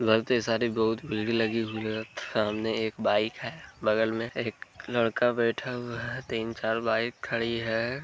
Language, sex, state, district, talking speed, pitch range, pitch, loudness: Hindi, male, Bihar, Jamui, 155 wpm, 110-120 Hz, 115 Hz, -29 LUFS